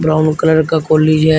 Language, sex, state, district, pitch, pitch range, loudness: Hindi, male, Uttar Pradesh, Shamli, 155 Hz, 155-160 Hz, -13 LUFS